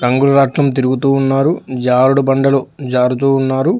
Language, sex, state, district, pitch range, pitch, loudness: Telugu, male, Telangana, Hyderabad, 130-135 Hz, 135 Hz, -14 LUFS